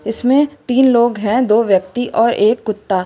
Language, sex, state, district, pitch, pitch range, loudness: Hindi, female, Uttar Pradesh, Lucknow, 235 Hz, 215-255 Hz, -14 LUFS